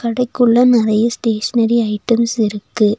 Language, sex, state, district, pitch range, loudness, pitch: Tamil, female, Tamil Nadu, Nilgiris, 215-235 Hz, -15 LUFS, 230 Hz